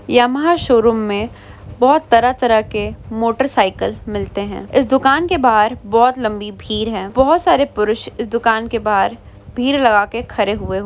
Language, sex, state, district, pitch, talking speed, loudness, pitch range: Hindi, female, West Bengal, Purulia, 230 Hz, 160 wpm, -16 LUFS, 210-260 Hz